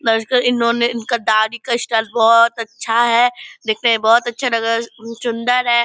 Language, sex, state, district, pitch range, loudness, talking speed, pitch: Hindi, female, Bihar, Purnia, 230-240 Hz, -16 LUFS, 185 wpm, 235 Hz